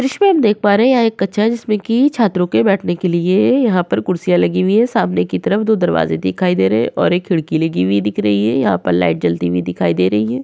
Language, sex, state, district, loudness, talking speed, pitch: Hindi, female, Uttar Pradesh, Hamirpur, -15 LUFS, 300 wpm, 180 Hz